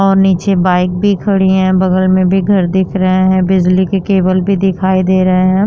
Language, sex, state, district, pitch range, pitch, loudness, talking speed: Hindi, female, Uttar Pradesh, Jyotiba Phule Nagar, 185-195 Hz, 190 Hz, -11 LUFS, 220 wpm